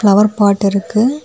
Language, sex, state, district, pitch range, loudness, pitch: Tamil, female, Tamil Nadu, Kanyakumari, 200-220 Hz, -13 LUFS, 205 Hz